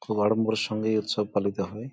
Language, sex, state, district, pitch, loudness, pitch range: Bengali, male, West Bengal, Jhargram, 110 Hz, -27 LUFS, 105-110 Hz